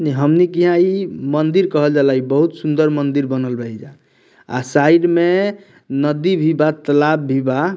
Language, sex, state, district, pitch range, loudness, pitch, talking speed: Bhojpuri, male, Bihar, Muzaffarpur, 140-175 Hz, -16 LUFS, 150 Hz, 170 wpm